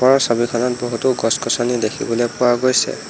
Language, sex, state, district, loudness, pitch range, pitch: Assamese, male, Assam, Hailakandi, -18 LUFS, 115-125 Hz, 120 Hz